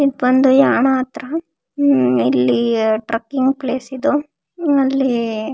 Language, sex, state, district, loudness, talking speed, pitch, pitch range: Kannada, female, Karnataka, Shimoga, -16 LUFS, 95 wpm, 265 Hz, 230-285 Hz